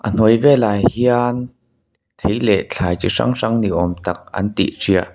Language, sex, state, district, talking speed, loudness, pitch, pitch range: Mizo, male, Mizoram, Aizawl, 185 wpm, -17 LUFS, 110 Hz, 95-120 Hz